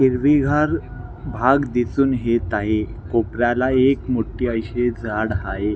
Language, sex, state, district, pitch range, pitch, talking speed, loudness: Marathi, male, Maharashtra, Nagpur, 110-130 Hz, 120 Hz, 115 wpm, -20 LUFS